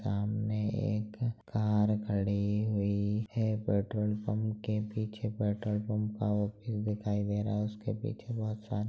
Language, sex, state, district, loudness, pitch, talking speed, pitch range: Hindi, male, Bihar, Jahanabad, -33 LUFS, 105 Hz, 155 wpm, 105-110 Hz